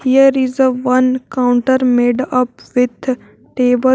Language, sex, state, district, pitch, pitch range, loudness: English, female, Jharkhand, Garhwa, 255 Hz, 250-260 Hz, -14 LUFS